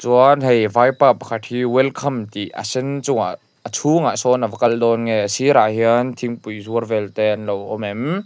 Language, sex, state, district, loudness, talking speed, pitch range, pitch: Mizo, male, Mizoram, Aizawl, -18 LUFS, 205 wpm, 110-130 Hz, 120 Hz